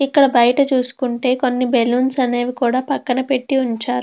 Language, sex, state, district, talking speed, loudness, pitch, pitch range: Telugu, female, Andhra Pradesh, Krishna, 135 wpm, -17 LUFS, 255 Hz, 245-265 Hz